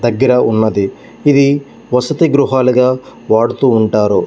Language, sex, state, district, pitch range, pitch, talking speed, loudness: Telugu, male, Andhra Pradesh, Visakhapatnam, 110-140 Hz, 125 Hz, 100 wpm, -13 LUFS